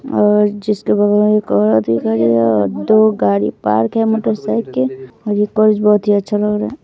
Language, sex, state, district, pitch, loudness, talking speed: Hindi, female, Bihar, Begusarai, 210 Hz, -14 LUFS, 210 wpm